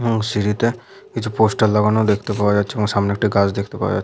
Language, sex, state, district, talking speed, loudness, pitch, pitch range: Bengali, male, West Bengal, Malda, 220 wpm, -18 LUFS, 105 Hz, 100-110 Hz